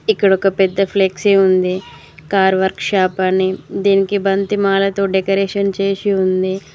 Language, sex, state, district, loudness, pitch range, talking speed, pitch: Telugu, female, Telangana, Mahabubabad, -16 LUFS, 190-195 Hz, 135 wpm, 195 Hz